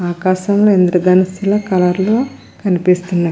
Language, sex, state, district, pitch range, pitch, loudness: Telugu, female, Andhra Pradesh, Krishna, 180-200 Hz, 185 Hz, -14 LUFS